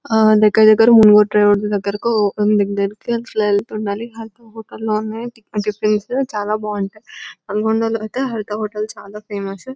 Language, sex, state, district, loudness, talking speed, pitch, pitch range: Telugu, female, Telangana, Nalgonda, -17 LUFS, 140 wpm, 215 Hz, 210-225 Hz